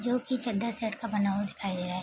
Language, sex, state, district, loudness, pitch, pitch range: Hindi, female, Bihar, Araria, -31 LUFS, 220 Hz, 195-235 Hz